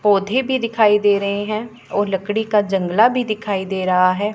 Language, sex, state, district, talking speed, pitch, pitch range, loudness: Hindi, male, Punjab, Pathankot, 205 wpm, 205 Hz, 195-220 Hz, -18 LUFS